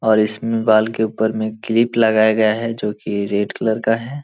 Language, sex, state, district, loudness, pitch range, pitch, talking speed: Hindi, male, Bihar, Jahanabad, -18 LUFS, 110-115 Hz, 110 Hz, 225 wpm